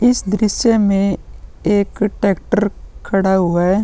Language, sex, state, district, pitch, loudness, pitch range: Hindi, male, Uttar Pradesh, Muzaffarnagar, 200 Hz, -17 LUFS, 190-215 Hz